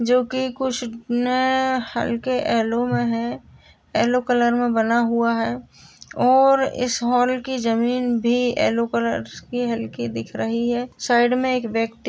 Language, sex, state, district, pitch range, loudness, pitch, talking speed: Hindi, female, Uttar Pradesh, Jalaun, 225-250 Hz, -21 LUFS, 240 Hz, 160 wpm